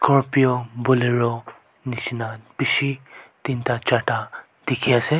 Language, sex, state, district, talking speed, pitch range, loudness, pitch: Nagamese, male, Nagaland, Kohima, 90 wpm, 120-130 Hz, -22 LUFS, 125 Hz